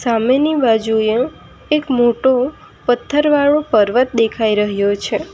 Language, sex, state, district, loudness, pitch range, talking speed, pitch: Gujarati, female, Gujarat, Valsad, -16 LUFS, 220-285 Hz, 110 wpm, 245 Hz